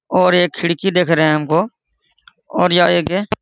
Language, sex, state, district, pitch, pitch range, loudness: Hindi, male, Jharkhand, Sahebganj, 175 Hz, 170-185 Hz, -15 LUFS